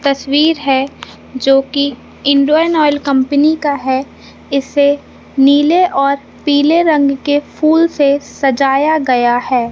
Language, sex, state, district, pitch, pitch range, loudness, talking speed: Hindi, male, Madhya Pradesh, Katni, 280 Hz, 270-295 Hz, -13 LUFS, 125 wpm